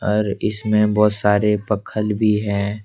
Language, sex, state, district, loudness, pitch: Hindi, male, Jharkhand, Deoghar, -19 LUFS, 105 Hz